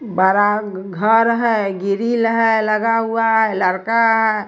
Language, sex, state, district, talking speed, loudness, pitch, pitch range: Hindi, female, Bihar, West Champaran, 135 wpm, -16 LUFS, 220 Hz, 200-225 Hz